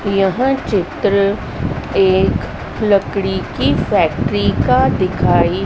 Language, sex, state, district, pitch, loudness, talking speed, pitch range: Hindi, female, Madhya Pradesh, Dhar, 200 Hz, -16 LUFS, 85 wpm, 195-210 Hz